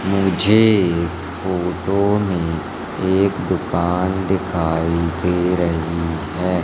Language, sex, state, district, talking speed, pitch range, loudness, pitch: Hindi, male, Madhya Pradesh, Katni, 90 wpm, 85-95 Hz, -19 LUFS, 90 Hz